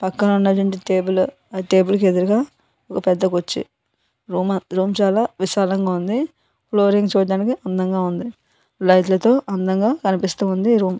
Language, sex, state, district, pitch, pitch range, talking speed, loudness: Telugu, female, Andhra Pradesh, Visakhapatnam, 195 Hz, 185-205 Hz, 130 wpm, -19 LUFS